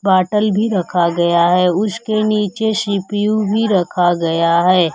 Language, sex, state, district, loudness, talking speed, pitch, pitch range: Hindi, female, Bihar, Kaimur, -15 LUFS, 145 wpm, 190 Hz, 175-210 Hz